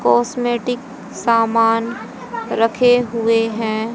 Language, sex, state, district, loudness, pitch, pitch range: Hindi, female, Haryana, Jhajjar, -17 LUFS, 230 Hz, 225-245 Hz